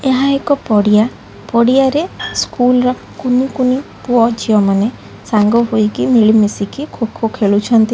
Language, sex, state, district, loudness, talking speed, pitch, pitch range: Odia, female, Odisha, Khordha, -14 LUFS, 135 wpm, 235 Hz, 215-260 Hz